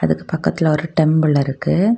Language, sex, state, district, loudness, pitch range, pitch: Tamil, female, Tamil Nadu, Kanyakumari, -17 LUFS, 135-165 Hz, 155 Hz